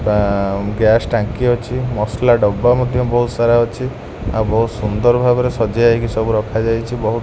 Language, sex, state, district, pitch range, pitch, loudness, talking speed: Odia, male, Odisha, Khordha, 110-120 Hz, 115 Hz, -16 LUFS, 165 wpm